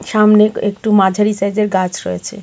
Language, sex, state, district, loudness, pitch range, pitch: Bengali, female, Tripura, West Tripura, -14 LUFS, 190-210 Hz, 210 Hz